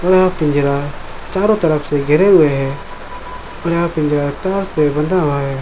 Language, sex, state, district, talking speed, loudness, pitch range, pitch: Hindi, male, Jharkhand, Jamtara, 180 wpm, -15 LUFS, 145-185 Hz, 155 Hz